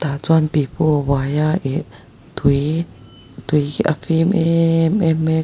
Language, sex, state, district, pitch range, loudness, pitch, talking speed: Mizo, male, Mizoram, Aizawl, 140-165 Hz, -18 LUFS, 155 Hz, 165 wpm